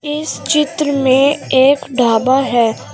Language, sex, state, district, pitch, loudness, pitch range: Hindi, female, Uttar Pradesh, Shamli, 270 Hz, -14 LUFS, 255-295 Hz